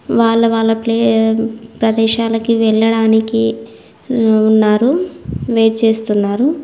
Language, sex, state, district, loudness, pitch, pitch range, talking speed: Telugu, female, Telangana, Mahabubabad, -14 LUFS, 225 Hz, 220-230 Hz, 70 wpm